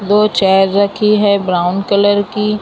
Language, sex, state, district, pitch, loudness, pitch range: Hindi, female, Maharashtra, Mumbai Suburban, 200 Hz, -13 LUFS, 195-210 Hz